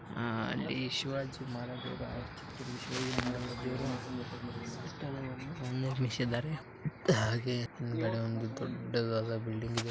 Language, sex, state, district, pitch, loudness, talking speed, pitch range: Kannada, male, Karnataka, Bijapur, 125 Hz, -36 LUFS, 145 wpm, 120-130 Hz